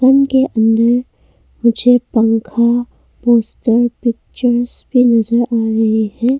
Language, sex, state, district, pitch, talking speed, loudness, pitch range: Hindi, female, Arunachal Pradesh, Longding, 235 Hz, 105 wpm, -14 LUFS, 225-245 Hz